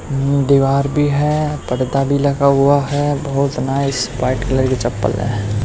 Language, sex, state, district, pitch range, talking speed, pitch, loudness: Hindi, male, Haryana, Rohtak, 125-140 Hz, 160 wpm, 140 Hz, -16 LUFS